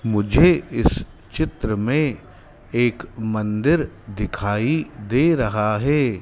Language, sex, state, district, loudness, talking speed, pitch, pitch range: Hindi, male, Madhya Pradesh, Dhar, -21 LUFS, 95 wpm, 115 Hz, 105-145 Hz